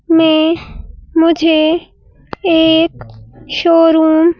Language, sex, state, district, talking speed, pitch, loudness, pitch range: Hindi, female, Madhya Pradesh, Bhopal, 70 wpm, 325 Hz, -12 LUFS, 315-335 Hz